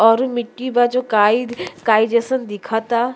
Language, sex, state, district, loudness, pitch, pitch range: Bhojpuri, female, Uttar Pradesh, Deoria, -18 LUFS, 235 Hz, 225-245 Hz